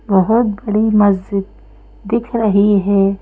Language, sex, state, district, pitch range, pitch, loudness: Hindi, female, Madhya Pradesh, Bhopal, 195-215 Hz, 200 Hz, -15 LUFS